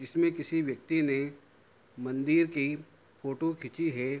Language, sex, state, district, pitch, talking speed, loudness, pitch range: Hindi, male, Uttar Pradesh, Hamirpur, 145 Hz, 130 wpm, -31 LUFS, 130-160 Hz